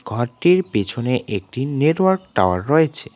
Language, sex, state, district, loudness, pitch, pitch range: Bengali, male, West Bengal, Cooch Behar, -19 LUFS, 130 Hz, 105-160 Hz